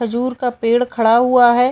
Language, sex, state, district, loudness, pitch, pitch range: Hindi, female, Uttar Pradesh, Gorakhpur, -15 LUFS, 245 Hz, 235-250 Hz